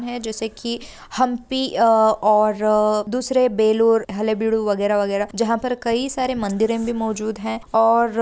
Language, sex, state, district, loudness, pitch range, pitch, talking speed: Hindi, female, Bihar, Bhagalpur, -20 LUFS, 215-235 Hz, 225 Hz, 155 wpm